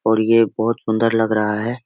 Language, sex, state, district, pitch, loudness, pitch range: Hindi, male, Bihar, Muzaffarpur, 110 Hz, -18 LUFS, 110-115 Hz